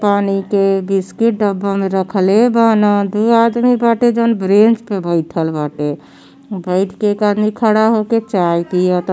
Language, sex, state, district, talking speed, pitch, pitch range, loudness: Bhojpuri, female, Uttar Pradesh, Gorakhpur, 150 wpm, 205 Hz, 190-225 Hz, -14 LUFS